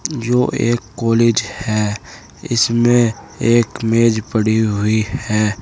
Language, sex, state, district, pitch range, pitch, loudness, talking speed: Hindi, male, Uttar Pradesh, Saharanpur, 110-120 Hz, 115 Hz, -16 LUFS, 105 wpm